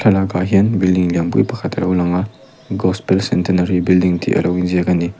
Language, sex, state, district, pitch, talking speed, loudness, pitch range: Mizo, male, Mizoram, Aizawl, 90 Hz, 230 wpm, -16 LUFS, 90-95 Hz